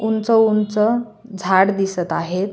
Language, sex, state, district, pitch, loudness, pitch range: Marathi, female, Maharashtra, Solapur, 210 Hz, -18 LUFS, 190-220 Hz